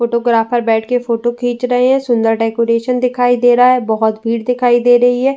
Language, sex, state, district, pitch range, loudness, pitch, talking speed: Hindi, female, Uttar Pradesh, Jyotiba Phule Nagar, 230-250 Hz, -13 LUFS, 245 Hz, 210 wpm